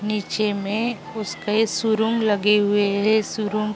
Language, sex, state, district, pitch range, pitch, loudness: Hindi, female, Uttar Pradesh, Jalaun, 205-220 Hz, 210 Hz, -21 LUFS